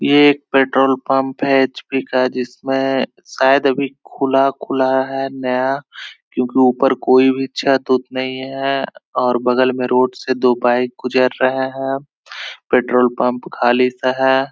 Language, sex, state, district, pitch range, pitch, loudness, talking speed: Hindi, male, Bihar, Araria, 125-135 Hz, 130 Hz, -17 LUFS, 155 wpm